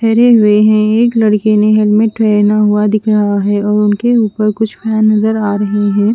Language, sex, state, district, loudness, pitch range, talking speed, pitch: Hindi, female, Chandigarh, Chandigarh, -11 LUFS, 210-220 Hz, 215 wpm, 215 Hz